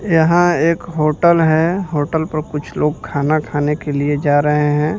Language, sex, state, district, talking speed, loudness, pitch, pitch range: Hindi, male, Bihar, Kaimur, 180 wpm, -16 LUFS, 155 Hz, 150-165 Hz